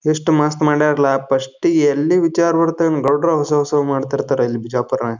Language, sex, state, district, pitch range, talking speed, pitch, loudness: Kannada, male, Karnataka, Bijapur, 135-160 Hz, 175 wpm, 150 Hz, -16 LUFS